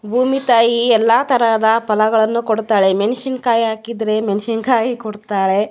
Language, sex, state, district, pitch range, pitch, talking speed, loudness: Kannada, female, Karnataka, Bellary, 215-235 Hz, 225 Hz, 105 wpm, -16 LUFS